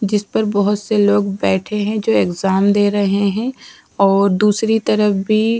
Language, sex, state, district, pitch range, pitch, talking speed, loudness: Hindi, female, Bihar, Patna, 200-215 Hz, 205 Hz, 170 wpm, -16 LUFS